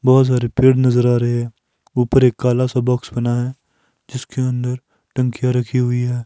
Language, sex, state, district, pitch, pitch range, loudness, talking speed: Hindi, male, Himachal Pradesh, Shimla, 125 Hz, 120-130 Hz, -17 LUFS, 190 wpm